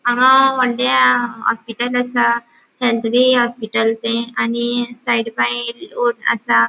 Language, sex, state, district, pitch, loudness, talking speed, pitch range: Konkani, female, Goa, North and South Goa, 235 Hz, -17 LUFS, 105 wpm, 225-245 Hz